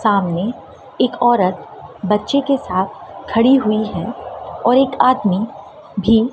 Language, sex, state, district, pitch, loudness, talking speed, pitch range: Hindi, female, Madhya Pradesh, Dhar, 220 Hz, -17 LUFS, 125 wpm, 200-250 Hz